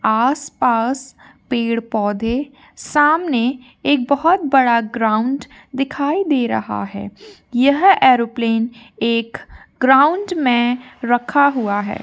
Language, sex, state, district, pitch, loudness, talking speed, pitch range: Hindi, female, Rajasthan, Churu, 250 Hz, -17 LUFS, 105 wpm, 230-280 Hz